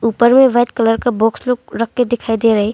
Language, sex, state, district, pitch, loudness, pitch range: Hindi, female, Arunachal Pradesh, Longding, 230 Hz, -14 LUFS, 225-245 Hz